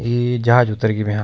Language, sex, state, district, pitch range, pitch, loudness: Garhwali, male, Uttarakhand, Tehri Garhwal, 105-120 Hz, 115 Hz, -17 LUFS